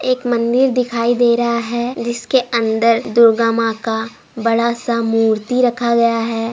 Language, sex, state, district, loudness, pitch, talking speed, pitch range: Hindi, female, Bihar, Saharsa, -16 LUFS, 235 Hz, 155 wpm, 230-240 Hz